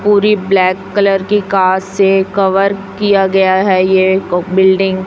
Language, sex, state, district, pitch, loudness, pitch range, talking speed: Hindi, female, Chhattisgarh, Raipur, 195 Hz, -12 LUFS, 190-195 Hz, 165 wpm